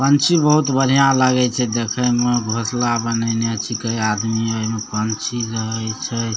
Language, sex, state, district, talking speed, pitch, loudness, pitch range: Maithili, male, Bihar, Samastipur, 160 wpm, 115 Hz, -18 LUFS, 115-125 Hz